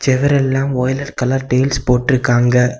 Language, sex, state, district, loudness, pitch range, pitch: Tamil, male, Tamil Nadu, Kanyakumari, -15 LUFS, 125-135 Hz, 130 Hz